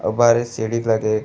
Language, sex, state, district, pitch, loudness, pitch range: Bhojpuri, male, Uttar Pradesh, Gorakhpur, 115 Hz, -19 LUFS, 110-115 Hz